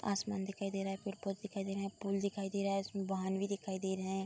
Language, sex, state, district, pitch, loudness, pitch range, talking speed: Hindi, female, Uttar Pradesh, Budaun, 195 Hz, -39 LUFS, 195-200 Hz, 310 wpm